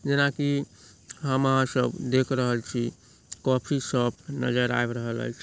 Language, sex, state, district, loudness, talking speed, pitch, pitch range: Maithili, male, Bihar, Samastipur, -26 LUFS, 165 wpm, 125 Hz, 120-135 Hz